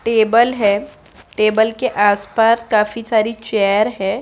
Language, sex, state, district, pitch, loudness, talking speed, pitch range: Hindi, female, Bihar, Gaya, 220 Hz, -16 LUFS, 130 wpm, 205-230 Hz